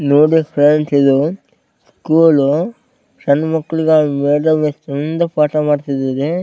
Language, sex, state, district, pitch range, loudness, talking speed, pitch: Kannada, male, Karnataka, Bellary, 145-160 Hz, -14 LUFS, 110 wpm, 150 Hz